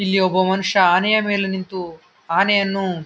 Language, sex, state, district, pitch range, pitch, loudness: Kannada, male, Karnataka, Gulbarga, 185-195 Hz, 190 Hz, -18 LUFS